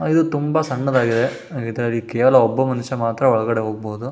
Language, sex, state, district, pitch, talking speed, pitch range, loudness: Kannada, male, Karnataka, Shimoga, 120 Hz, 145 wpm, 115-135 Hz, -19 LUFS